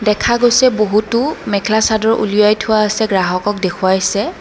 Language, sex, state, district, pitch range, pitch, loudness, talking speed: Assamese, female, Assam, Kamrup Metropolitan, 205-220 Hz, 215 Hz, -14 LUFS, 135 wpm